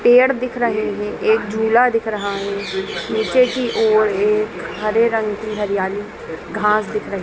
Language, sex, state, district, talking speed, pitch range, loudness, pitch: Hindi, female, Bihar, Jamui, 165 wpm, 210-245 Hz, -18 LUFS, 220 Hz